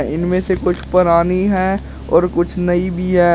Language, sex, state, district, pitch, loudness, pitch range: Hindi, male, Uttar Pradesh, Shamli, 180 Hz, -16 LUFS, 175-185 Hz